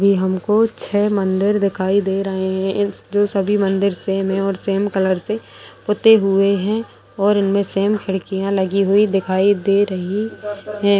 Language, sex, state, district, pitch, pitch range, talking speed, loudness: Hindi, male, Bihar, Araria, 200 Hz, 195-205 Hz, 165 wpm, -18 LUFS